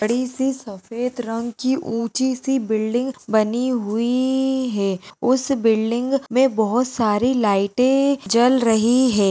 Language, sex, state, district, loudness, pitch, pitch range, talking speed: Hindi, female, Bihar, Jahanabad, -20 LUFS, 240 Hz, 220-260 Hz, 130 wpm